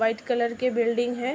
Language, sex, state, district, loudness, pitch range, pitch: Hindi, female, Uttar Pradesh, Ghazipur, -25 LUFS, 235-245 Hz, 240 Hz